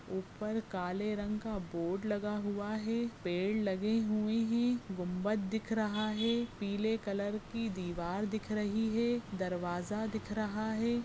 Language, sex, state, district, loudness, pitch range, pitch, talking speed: Hindi, female, Goa, North and South Goa, -35 LUFS, 195-220 Hz, 210 Hz, 145 wpm